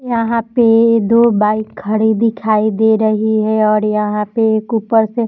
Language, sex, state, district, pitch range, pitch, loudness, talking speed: Hindi, female, Bihar, Samastipur, 215-230 Hz, 220 Hz, -14 LUFS, 180 wpm